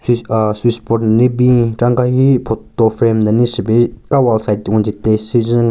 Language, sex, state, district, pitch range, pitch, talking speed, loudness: Rengma, male, Nagaland, Kohima, 110-120 Hz, 115 Hz, 210 wpm, -14 LUFS